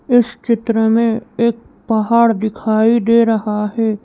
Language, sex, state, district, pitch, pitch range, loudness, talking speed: Hindi, female, Madhya Pradesh, Bhopal, 225 Hz, 220-235 Hz, -15 LUFS, 135 wpm